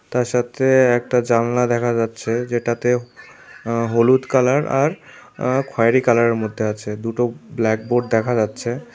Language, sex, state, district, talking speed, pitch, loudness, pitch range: Bengali, male, Tripura, South Tripura, 135 wpm, 120 Hz, -19 LUFS, 115-125 Hz